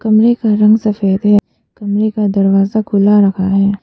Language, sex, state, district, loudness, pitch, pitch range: Hindi, female, Arunachal Pradesh, Papum Pare, -12 LUFS, 205 Hz, 195-215 Hz